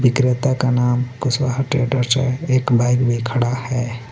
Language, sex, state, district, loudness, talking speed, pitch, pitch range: Hindi, male, Jharkhand, Garhwa, -18 LUFS, 160 wpm, 125 Hz, 120-130 Hz